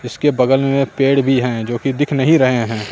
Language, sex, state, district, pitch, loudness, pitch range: Hindi, male, Bihar, Katihar, 135 Hz, -15 LUFS, 125-140 Hz